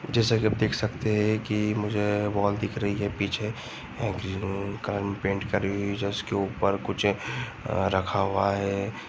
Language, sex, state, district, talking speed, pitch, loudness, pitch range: Hindi, male, Chhattisgarh, Raigarh, 150 wpm, 100 Hz, -27 LUFS, 100-110 Hz